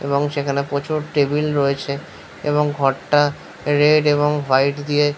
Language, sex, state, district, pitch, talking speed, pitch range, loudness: Bengali, male, West Bengal, Paschim Medinipur, 145 Hz, 130 wpm, 140-150 Hz, -19 LUFS